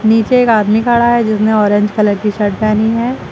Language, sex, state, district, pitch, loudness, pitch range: Hindi, female, Uttar Pradesh, Lucknow, 215 Hz, -12 LUFS, 210-230 Hz